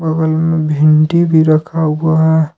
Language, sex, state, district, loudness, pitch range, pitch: Hindi, male, Jharkhand, Ranchi, -12 LUFS, 155-160 Hz, 160 Hz